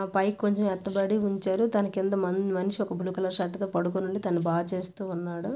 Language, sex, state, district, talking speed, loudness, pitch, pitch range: Telugu, female, Andhra Pradesh, Visakhapatnam, 195 wpm, -28 LUFS, 190 Hz, 185-200 Hz